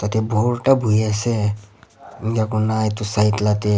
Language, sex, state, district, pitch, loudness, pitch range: Nagamese, male, Nagaland, Kohima, 110 Hz, -19 LUFS, 105-110 Hz